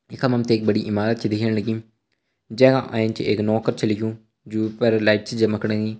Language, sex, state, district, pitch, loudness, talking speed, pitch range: Hindi, male, Uttarakhand, Uttarkashi, 110 Hz, -21 LUFS, 220 wpm, 110-115 Hz